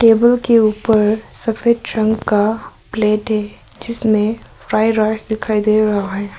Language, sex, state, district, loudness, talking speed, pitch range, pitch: Hindi, male, Arunachal Pradesh, Papum Pare, -16 LUFS, 140 wpm, 210-225 Hz, 215 Hz